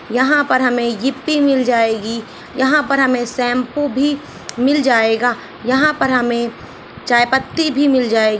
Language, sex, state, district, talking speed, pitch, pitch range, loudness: Hindi, female, Bihar, Saharsa, 155 wpm, 255 Hz, 240-275 Hz, -16 LUFS